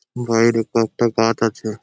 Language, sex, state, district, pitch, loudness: Bengali, male, West Bengal, Malda, 115 Hz, -18 LUFS